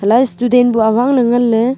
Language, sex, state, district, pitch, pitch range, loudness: Wancho, female, Arunachal Pradesh, Longding, 240 Hz, 230-245 Hz, -12 LUFS